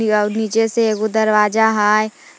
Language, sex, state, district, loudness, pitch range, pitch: Magahi, female, Jharkhand, Palamu, -16 LUFS, 215-220 Hz, 220 Hz